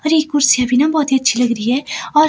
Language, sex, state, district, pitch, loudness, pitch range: Hindi, female, Himachal Pradesh, Shimla, 270 Hz, -15 LUFS, 250-305 Hz